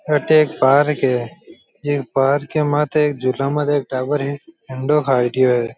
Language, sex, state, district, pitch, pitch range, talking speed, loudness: Rajasthani, male, Rajasthan, Churu, 140 Hz, 130-150 Hz, 175 wpm, -18 LUFS